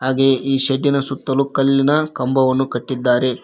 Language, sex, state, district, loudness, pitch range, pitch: Kannada, male, Karnataka, Koppal, -16 LUFS, 130-135 Hz, 135 Hz